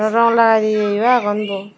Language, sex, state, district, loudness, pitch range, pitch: Chakma, female, Tripura, Dhalai, -15 LUFS, 205-230 Hz, 215 Hz